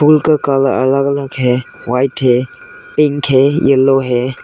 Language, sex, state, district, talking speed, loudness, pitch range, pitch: Hindi, male, Arunachal Pradesh, Lower Dibang Valley, 160 wpm, -13 LUFS, 130-140 Hz, 135 Hz